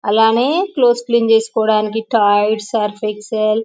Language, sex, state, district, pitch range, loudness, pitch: Telugu, female, Telangana, Nalgonda, 215-235 Hz, -15 LUFS, 220 Hz